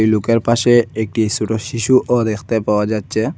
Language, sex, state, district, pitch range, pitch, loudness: Bengali, male, Assam, Hailakandi, 110-120 Hz, 110 Hz, -16 LUFS